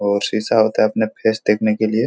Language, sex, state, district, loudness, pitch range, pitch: Hindi, male, Bihar, Supaul, -17 LUFS, 105-110 Hz, 110 Hz